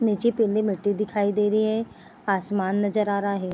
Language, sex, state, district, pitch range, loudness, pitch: Hindi, female, Bihar, Vaishali, 200-215 Hz, -24 LUFS, 205 Hz